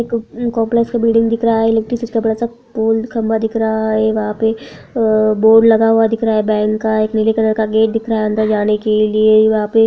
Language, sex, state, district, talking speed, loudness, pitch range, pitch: Hindi, female, Bihar, Araria, 245 wpm, -14 LUFS, 215-225 Hz, 220 Hz